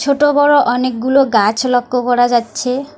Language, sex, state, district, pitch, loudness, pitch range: Bengali, female, West Bengal, Alipurduar, 250 Hz, -13 LUFS, 245-280 Hz